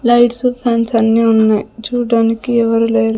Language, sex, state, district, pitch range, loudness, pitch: Telugu, female, Andhra Pradesh, Sri Satya Sai, 225-240 Hz, -13 LUFS, 230 Hz